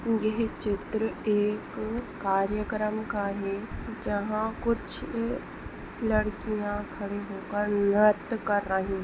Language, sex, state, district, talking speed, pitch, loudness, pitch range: Hindi, female, Maharashtra, Solapur, 105 wpm, 210 Hz, -29 LUFS, 205-220 Hz